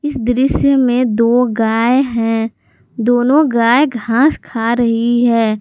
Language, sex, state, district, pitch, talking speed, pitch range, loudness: Hindi, female, Jharkhand, Garhwa, 240 Hz, 130 wpm, 225-250 Hz, -14 LUFS